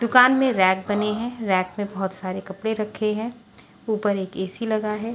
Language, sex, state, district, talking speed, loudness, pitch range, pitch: Hindi, female, Punjab, Pathankot, 195 wpm, -23 LUFS, 190-225 Hz, 210 Hz